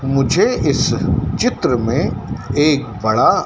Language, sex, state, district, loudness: Hindi, male, Madhya Pradesh, Dhar, -17 LUFS